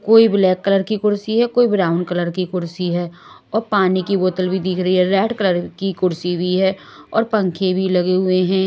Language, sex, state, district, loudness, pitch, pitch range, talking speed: Hindi, female, Maharashtra, Mumbai Suburban, -18 LUFS, 185 Hz, 180-200 Hz, 215 wpm